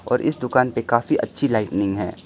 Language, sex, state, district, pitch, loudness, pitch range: Hindi, male, Arunachal Pradesh, Lower Dibang Valley, 120 Hz, -21 LUFS, 105-125 Hz